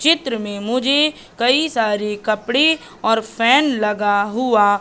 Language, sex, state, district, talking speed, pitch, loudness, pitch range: Hindi, female, Madhya Pradesh, Katni, 125 wpm, 230 Hz, -17 LUFS, 210-270 Hz